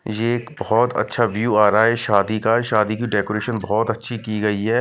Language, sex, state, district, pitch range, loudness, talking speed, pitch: Hindi, male, Himachal Pradesh, Shimla, 105-115 Hz, -19 LUFS, 210 wpm, 110 Hz